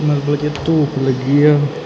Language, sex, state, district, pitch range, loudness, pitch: Punjabi, male, Karnataka, Bangalore, 140-150 Hz, -15 LUFS, 145 Hz